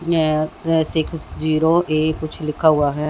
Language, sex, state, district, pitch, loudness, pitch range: Hindi, female, Haryana, Jhajjar, 155 Hz, -19 LUFS, 155-165 Hz